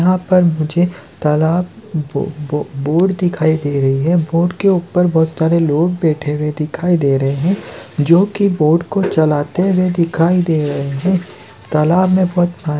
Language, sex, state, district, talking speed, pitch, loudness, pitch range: Hindi, male, Chhattisgarh, Rajnandgaon, 180 wpm, 165 Hz, -15 LUFS, 150-180 Hz